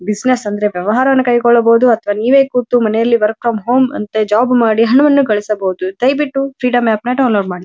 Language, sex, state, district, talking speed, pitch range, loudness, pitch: Kannada, female, Karnataka, Dharwad, 165 wpm, 210-255 Hz, -13 LUFS, 235 Hz